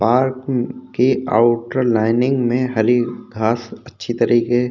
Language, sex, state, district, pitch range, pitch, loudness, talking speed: Hindi, male, Uttar Pradesh, Hamirpur, 115-125 Hz, 120 Hz, -18 LUFS, 125 wpm